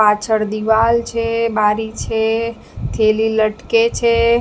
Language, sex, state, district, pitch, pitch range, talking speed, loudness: Gujarati, female, Maharashtra, Mumbai Suburban, 220 Hz, 215-230 Hz, 110 wpm, -16 LUFS